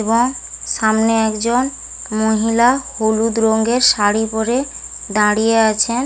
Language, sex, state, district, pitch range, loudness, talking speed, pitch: Bengali, female, West Bengal, Paschim Medinipur, 220-245 Hz, -16 LUFS, 110 wpm, 225 Hz